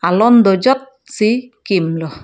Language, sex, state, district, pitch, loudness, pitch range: Karbi, female, Assam, Karbi Anglong, 215 Hz, -14 LUFS, 175-250 Hz